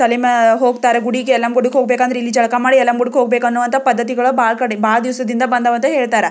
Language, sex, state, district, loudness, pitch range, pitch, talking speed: Kannada, female, Karnataka, Belgaum, -14 LUFS, 240-255 Hz, 245 Hz, 210 wpm